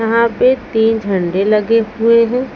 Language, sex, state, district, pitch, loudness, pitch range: Hindi, female, Chhattisgarh, Raipur, 225 Hz, -14 LUFS, 215-230 Hz